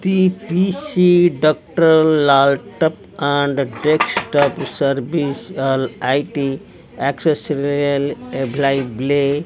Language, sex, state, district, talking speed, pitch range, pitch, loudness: Odia, male, Odisha, Khordha, 75 wpm, 140-160 Hz, 145 Hz, -17 LUFS